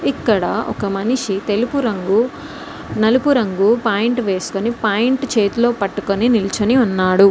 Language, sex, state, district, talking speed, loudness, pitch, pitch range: Telugu, female, Telangana, Mahabubabad, 115 wpm, -17 LUFS, 220 Hz, 200-240 Hz